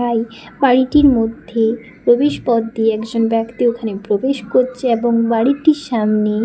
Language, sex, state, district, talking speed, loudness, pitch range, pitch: Bengali, female, West Bengal, Paschim Medinipur, 140 wpm, -16 LUFS, 225-255 Hz, 230 Hz